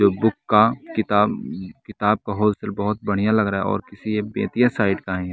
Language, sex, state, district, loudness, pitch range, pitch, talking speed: Hindi, male, Bihar, West Champaran, -21 LUFS, 100-110 Hz, 105 Hz, 215 wpm